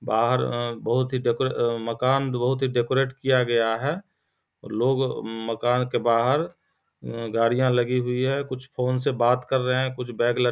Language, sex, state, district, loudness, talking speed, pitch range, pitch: Maithili, male, Bihar, Samastipur, -24 LUFS, 170 wpm, 120-130 Hz, 125 Hz